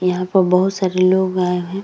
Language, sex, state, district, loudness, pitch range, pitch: Hindi, female, Bihar, Vaishali, -17 LUFS, 180-190 Hz, 185 Hz